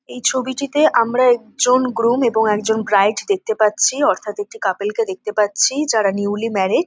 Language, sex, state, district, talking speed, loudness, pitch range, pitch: Bengali, female, West Bengal, North 24 Parganas, 175 wpm, -17 LUFS, 215-280 Hz, 235 Hz